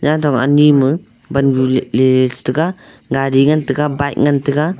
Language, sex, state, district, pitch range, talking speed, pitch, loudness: Wancho, male, Arunachal Pradesh, Longding, 135-150 Hz, 160 wpm, 140 Hz, -14 LUFS